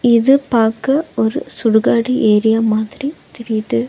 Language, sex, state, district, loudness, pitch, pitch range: Tamil, female, Tamil Nadu, Nilgiris, -15 LUFS, 230 Hz, 220-260 Hz